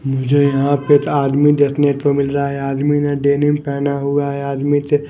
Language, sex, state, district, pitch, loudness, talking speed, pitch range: Hindi, male, Maharashtra, Mumbai Suburban, 140 Hz, -16 LUFS, 210 wpm, 140-145 Hz